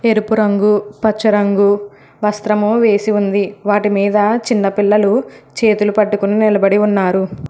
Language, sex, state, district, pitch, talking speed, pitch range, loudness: Telugu, female, Telangana, Hyderabad, 210 Hz, 120 wpm, 200-215 Hz, -14 LUFS